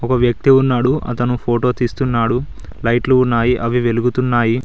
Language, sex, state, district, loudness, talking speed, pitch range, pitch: Telugu, male, Telangana, Mahabubabad, -16 LUFS, 130 wpm, 120-130 Hz, 125 Hz